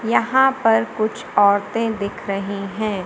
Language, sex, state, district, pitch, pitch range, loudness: Hindi, female, Madhya Pradesh, Umaria, 215 Hz, 200-225 Hz, -19 LUFS